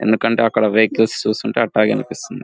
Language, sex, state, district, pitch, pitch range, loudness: Telugu, male, Andhra Pradesh, Guntur, 110 Hz, 110-115 Hz, -17 LUFS